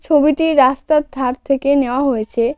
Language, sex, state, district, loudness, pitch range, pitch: Bengali, female, West Bengal, Cooch Behar, -16 LUFS, 255-295 Hz, 275 Hz